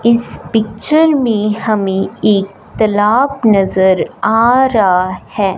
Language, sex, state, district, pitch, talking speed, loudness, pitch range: Hindi, female, Punjab, Fazilka, 215 Hz, 105 wpm, -13 LUFS, 195-235 Hz